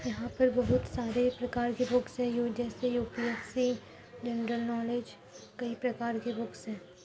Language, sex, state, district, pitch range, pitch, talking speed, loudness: Hindi, female, Uttar Pradesh, Muzaffarnagar, 235-245 Hz, 240 Hz, 155 wpm, -33 LUFS